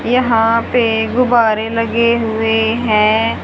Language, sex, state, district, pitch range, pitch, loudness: Hindi, female, Haryana, Charkhi Dadri, 220-235 Hz, 230 Hz, -14 LUFS